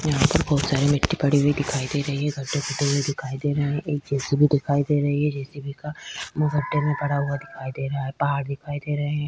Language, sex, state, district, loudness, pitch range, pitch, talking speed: Hindi, female, Uttar Pradesh, Hamirpur, -24 LUFS, 140-145 Hz, 145 Hz, 260 wpm